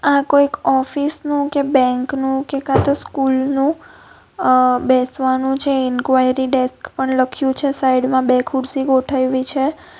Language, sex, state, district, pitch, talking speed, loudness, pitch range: Gujarati, female, Gujarat, Valsad, 265 Hz, 145 wpm, -17 LUFS, 260-280 Hz